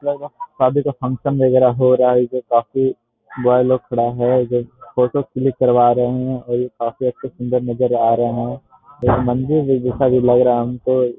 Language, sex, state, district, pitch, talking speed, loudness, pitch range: Hindi, male, Bihar, Jamui, 125 Hz, 215 wpm, -17 LUFS, 120-130 Hz